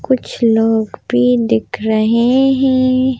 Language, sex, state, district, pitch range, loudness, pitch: Hindi, female, Madhya Pradesh, Bhopal, 220-260 Hz, -14 LUFS, 230 Hz